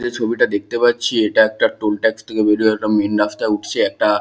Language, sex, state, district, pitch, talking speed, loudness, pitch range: Bengali, male, West Bengal, Kolkata, 110 Hz, 215 wpm, -17 LUFS, 105-115 Hz